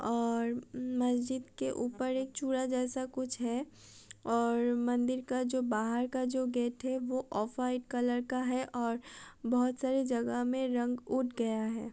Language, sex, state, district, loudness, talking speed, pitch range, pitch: Hindi, female, Uttar Pradesh, Budaun, -34 LUFS, 160 wpm, 240-255 Hz, 250 Hz